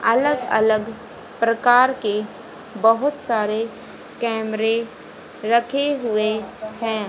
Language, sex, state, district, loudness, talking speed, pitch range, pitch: Hindi, female, Haryana, Rohtak, -20 LUFS, 85 wpm, 220-235 Hz, 225 Hz